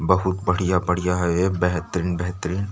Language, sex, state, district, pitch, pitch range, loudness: Chhattisgarhi, male, Chhattisgarh, Rajnandgaon, 90 Hz, 90-95 Hz, -22 LUFS